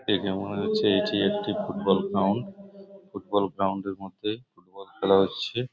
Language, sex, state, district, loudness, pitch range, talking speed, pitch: Bengali, male, West Bengal, Purulia, -26 LUFS, 95-120 Hz, 180 wpm, 100 Hz